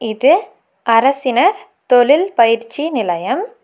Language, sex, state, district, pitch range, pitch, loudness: Tamil, female, Tamil Nadu, Nilgiris, 230-370 Hz, 270 Hz, -14 LUFS